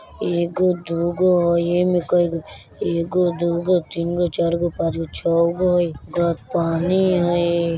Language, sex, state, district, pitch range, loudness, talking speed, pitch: Bajjika, male, Bihar, Vaishali, 170-175 Hz, -20 LUFS, 85 wpm, 170 Hz